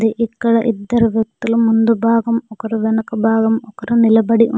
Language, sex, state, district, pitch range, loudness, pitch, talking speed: Telugu, female, Telangana, Mahabubabad, 225-230 Hz, -16 LUFS, 230 Hz, 130 wpm